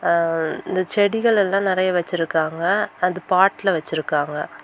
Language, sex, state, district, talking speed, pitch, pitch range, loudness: Tamil, female, Tamil Nadu, Kanyakumari, 130 wpm, 180 Hz, 160-195 Hz, -20 LUFS